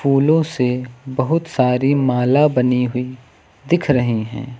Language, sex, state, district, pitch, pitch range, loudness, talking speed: Hindi, female, Uttar Pradesh, Lucknow, 130 Hz, 125-140 Hz, -17 LUFS, 130 wpm